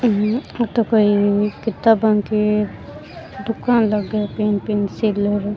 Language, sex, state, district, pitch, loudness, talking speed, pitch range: Rajasthani, female, Rajasthan, Churu, 210 Hz, -18 LUFS, 120 wpm, 205-225 Hz